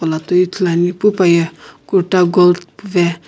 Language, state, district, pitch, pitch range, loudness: Sumi, Nagaland, Kohima, 180 Hz, 170-185 Hz, -14 LUFS